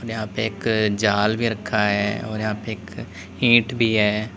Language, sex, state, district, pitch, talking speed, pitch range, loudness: Hindi, male, Uttar Pradesh, Lalitpur, 110 Hz, 190 wpm, 105-110 Hz, -21 LUFS